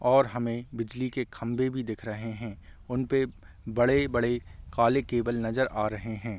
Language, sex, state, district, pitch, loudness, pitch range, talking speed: Hindi, male, Uttar Pradesh, Varanasi, 120 Hz, -29 LUFS, 110-130 Hz, 170 wpm